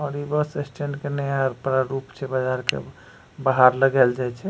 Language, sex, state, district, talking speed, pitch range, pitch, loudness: Maithili, male, Bihar, Supaul, 185 wpm, 130-145 Hz, 135 Hz, -22 LUFS